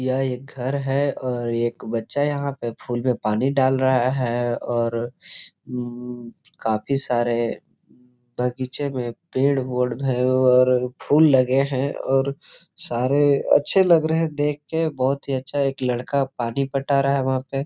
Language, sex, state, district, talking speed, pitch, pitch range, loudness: Hindi, male, Jharkhand, Sahebganj, 160 wpm, 130 Hz, 125-140 Hz, -22 LUFS